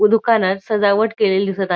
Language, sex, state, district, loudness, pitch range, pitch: Marathi, female, Maharashtra, Dhule, -17 LUFS, 195-220 Hz, 205 Hz